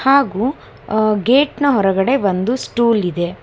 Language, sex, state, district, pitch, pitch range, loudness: Kannada, female, Karnataka, Bangalore, 230 Hz, 195-270 Hz, -16 LUFS